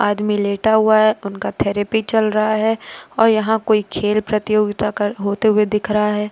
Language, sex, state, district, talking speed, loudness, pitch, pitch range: Hindi, female, Uttar Pradesh, Jalaun, 190 wpm, -17 LUFS, 215 Hz, 210-220 Hz